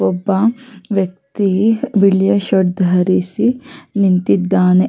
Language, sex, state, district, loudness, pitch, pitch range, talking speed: Kannada, female, Karnataka, Raichur, -15 LUFS, 195 Hz, 180-210 Hz, 75 wpm